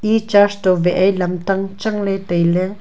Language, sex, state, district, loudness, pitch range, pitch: Wancho, female, Arunachal Pradesh, Longding, -17 LUFS, 180-205 Hz, 195 Hz